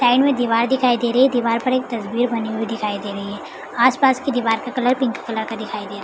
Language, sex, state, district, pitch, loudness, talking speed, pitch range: Hindi, female, Bihar, Madhepura, 235 Hz, -19 LUFS, 300 wpm, 220-255 Hz